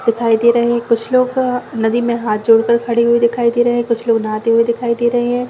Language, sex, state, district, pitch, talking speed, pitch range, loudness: Hindi, female, Chhattisgarh, Raigarh, 235 Hz, 285 wpm, 230-240 Hz, -15 LUFS